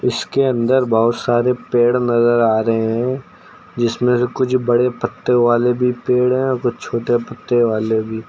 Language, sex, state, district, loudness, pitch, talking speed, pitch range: Hindi, male, Uttar Pradesh, Lucknow, -17 LUFS, 120 Hz, 175 wpm, 120-125 Hz